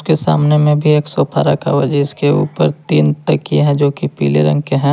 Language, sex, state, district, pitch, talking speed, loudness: Hindi, male, Jharkhand, Ranchi, 145 Hz, 230 wpm, -14 LUFS